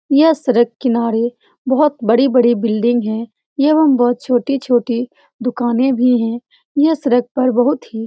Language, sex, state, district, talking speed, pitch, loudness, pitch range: Hindi, female, Bihar, Saran, 140 wpm, 245 Hz, -15 LUFS, 235-270 Hz